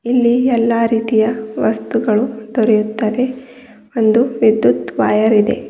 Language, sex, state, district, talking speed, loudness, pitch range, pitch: Kannada, female, Karnataka, Bidar, 85 wpm, -15 LUFS, 220-240 Hz, 230 Hz